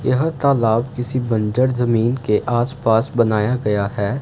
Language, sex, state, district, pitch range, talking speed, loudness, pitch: Hindi, male, Punjab, Fazilka, 110-130 Hz, 140 wpm, -18 LUFS, 120 Hz